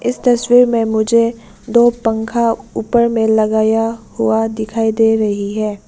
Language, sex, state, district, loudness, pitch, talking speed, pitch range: Hindi, female, Arunachal Pradesh, Lower Dibang Valley, -15 LUFS, 225 Hz, 145 wpm, 220-235 Hz